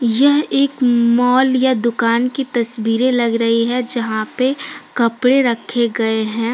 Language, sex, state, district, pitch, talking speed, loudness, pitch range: Hindi, female, Jharkhand, Deoghar, 240 Hz, 145 wpm, -16 LUFS, 230-260 Hz